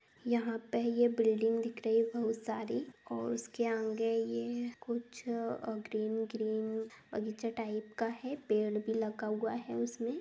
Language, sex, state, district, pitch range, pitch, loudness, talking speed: Bhojpuri, female, Bihar, Saran, 215-235 Hz, 225 Hz, -36 LUFS, 160 wpm